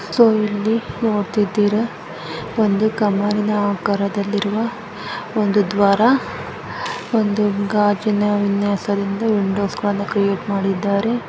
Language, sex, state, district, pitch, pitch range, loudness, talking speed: Kannada, female, Karnataka, Gulbarga, 205 Hz, 200-215 Hz, -19 LUFS, 80 wpm